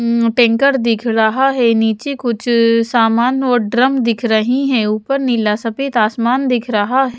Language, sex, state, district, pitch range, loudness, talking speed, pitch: Hindi, female, Haryana, Jhajjar, 225-260 Hz, -14 LUFS, 165 wpm, 235 Hz